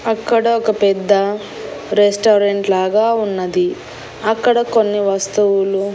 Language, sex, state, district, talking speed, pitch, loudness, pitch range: Telugu, female, Andhra Pradesh, Annamaya, 90 wpm, 205 Hz, -15 LUFS, 195-220 Hz